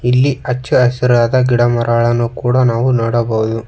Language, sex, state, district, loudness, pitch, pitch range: Kannada, male, Karnataka, Bangalore, -14 LUFS, 120 Hz, 115-125 Hz